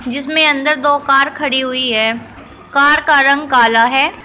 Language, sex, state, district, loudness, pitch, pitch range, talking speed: Hindi, female, Uttar Pradesh, Shamli, -12 LUFS, 275 Hz, 255-295 Hz, 170 wpm